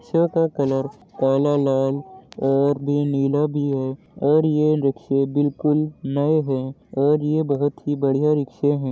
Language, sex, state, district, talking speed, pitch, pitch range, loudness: Hindi, male, Uttar Pradesh, Jyotiba Phule Nagar, 155 wpm, 145 Hz, 135-150 Hz, -21 LUFS